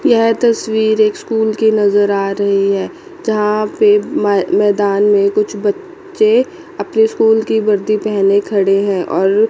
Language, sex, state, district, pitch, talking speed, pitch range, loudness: Hindi, female, Chandigarh, Chandigarh, 210 Hz, 160 wpm, 200-220 Hz, -14 LUFS